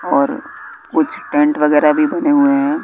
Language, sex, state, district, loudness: Hindi, male, Bihar, West Champaran, -15 LUFS